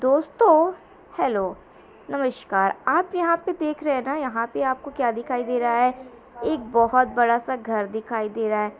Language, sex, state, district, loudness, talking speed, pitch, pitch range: Hindi, female, Uttar Pradesh, Muzaffarnagar, -23 LUFS, 175 wpm, 250 Hz, 230-285 Hz